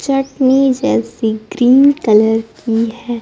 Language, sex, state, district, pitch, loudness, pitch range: Hindi, female, Bihar, Kaimur, 240 Hz, -13 LUFS, 220-270 Hz